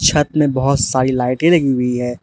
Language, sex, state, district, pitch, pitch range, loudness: Hindi, male, Arunachal Pradesh, Lower Dibang Valley, 130 Hz, 125-150 Hz, -15 LUFS